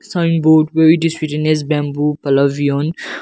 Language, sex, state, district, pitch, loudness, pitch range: English, male, Nagaland, Kohima, 155 Hz, -15 LUFS, 145-160 Hz